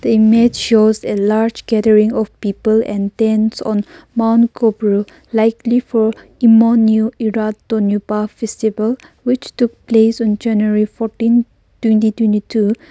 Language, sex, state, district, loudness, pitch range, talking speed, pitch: English, female, Nagaland, Kohima, -15 LUFS, 215-230 Hz, 125 wpm, 220 Hz